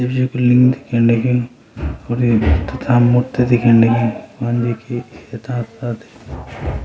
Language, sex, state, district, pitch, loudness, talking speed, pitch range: Garhwali, male, Uttarakhand, Uttarkashi, 120 Hz, -16 LUFS, 120 wpm, 115-125 Hz